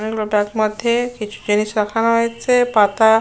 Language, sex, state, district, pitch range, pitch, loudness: Bengali, female, West Bengal, Jalpaiguri, 210-230 Hz, 220 Hz, -17 LUFS